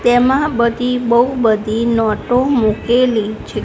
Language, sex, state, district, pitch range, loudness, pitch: Gujarati, female, Gujarat, Gandhinagar, 220-250 Hz, -15 LUFS, 235 Hz